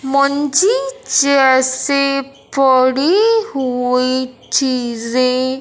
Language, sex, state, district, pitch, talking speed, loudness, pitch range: Hindi, male, Punjab, Fazilka, 265 Hz, 45 wpm, -15 LUFS, 255-280 Hz